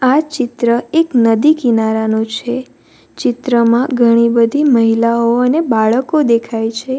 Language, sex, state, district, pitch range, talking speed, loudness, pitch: Gujarati, female, Gujarat, Valsad, 230-260 Hz, 120 wpm, -13 LUFS, 235 Hz